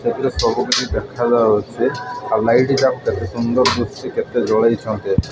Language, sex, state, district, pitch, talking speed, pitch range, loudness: Odia, male, Odisha, Malkangiri, 120 Hz, 115 wpm, 110-130 Hz, -18 LUFS